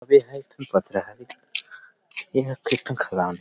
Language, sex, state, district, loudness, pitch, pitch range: Chhattisgarhi, male, Chhattisgarh, Rajnandgaon, -25 LUFS, 130 Hz, 90-140 Hz